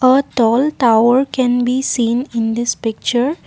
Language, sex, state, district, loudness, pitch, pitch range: English, female, Assam, Kamrup Metropolitan, -15 LUFS, 245 Hz, 235-260 Hz